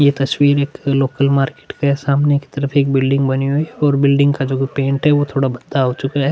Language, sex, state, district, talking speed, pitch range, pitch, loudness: Hindi, male, Chhattisgarh, Korba, 235 wpm, 135-145 Hz, 140 Hz, -16 LUFS